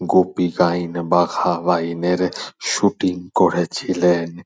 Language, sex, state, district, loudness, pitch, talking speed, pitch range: Bengali, male, West Bengal, Purulia, -19 LUFS, 90 Hz, 65 wpm, 85-90 Hz